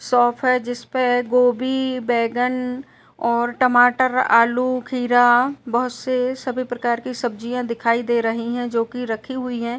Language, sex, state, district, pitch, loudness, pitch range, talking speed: Hindi, female, Uttar Pradesh, Etah, 245 Hz, -20 LUFS, 240-255 Hz, 145 wpm